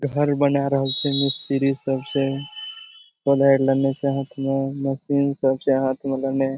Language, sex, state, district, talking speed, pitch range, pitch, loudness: Maithili, male, Bihar, Supaul, 180 wpm, 135-140 Hz, 135 Hz, -22 LUFS